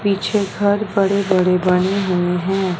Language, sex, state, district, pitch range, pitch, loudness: Hindi, female, Punjab, Fazilka, 180-200 Hz, 195 Hz, -17 LUFS